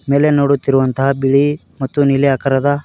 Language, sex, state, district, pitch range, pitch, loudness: Kannada, male, Karnataka, Koppal, 135-145 Hz, 140 Hz, -14 LUFS